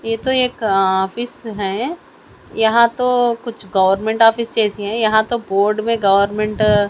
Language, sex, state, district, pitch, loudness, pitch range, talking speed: Hindi, female, Haryana, Jhajjar, 220 Hz, -17 LUFS, 205-235 Hz, 155 wpm